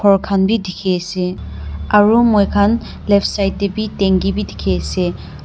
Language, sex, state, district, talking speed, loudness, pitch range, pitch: Nagamese, female, Nagaland, Dimapur, 165 wpm, -16 LUFS, 180-205 Hz, 195 Hz